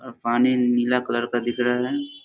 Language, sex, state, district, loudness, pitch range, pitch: Hindi, male, Bihar, Darbhanga, -22 LUFS, 120-130 Hz, 125 Hz